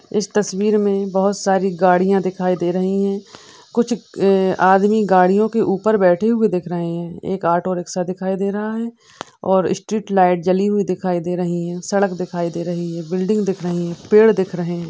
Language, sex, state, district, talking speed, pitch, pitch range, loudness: Hindi, female, Uttar Pradesh, Ghazipur, 195 wpm, 190 Hz, 180-205 Hz, -18 LUFS